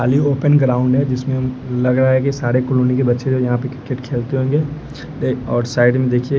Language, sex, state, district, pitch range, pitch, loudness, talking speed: Hindi, male, Bihar, West Champaran, 125-135 Hz, 130 Hz, -17 LUFS, 215 wpm